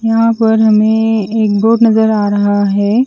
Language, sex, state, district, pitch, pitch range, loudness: Hindi, female, Chandigarh, Chandigarh, 220 Hz, 205-225 Hz, -11 LUFS